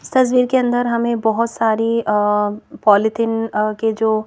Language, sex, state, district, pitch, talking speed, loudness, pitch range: Hindi, female, Madhya Pradesh, Bhopal, 225 Hz, 155 wpm, -17 LUFS, 215-235 Hz